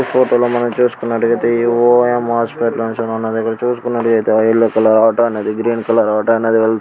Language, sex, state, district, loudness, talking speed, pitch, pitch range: Telugu, male, Karnataka, Belgaum, -14 LUFS, 185 wpm, 115 Hz, 115-120 Hz